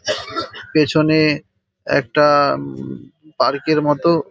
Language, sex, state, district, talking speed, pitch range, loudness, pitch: Bengali, male, West Bengal, Paschim Medinipur, 95 wpm, 140-155 Hz, -17 LUFS, 150 Hz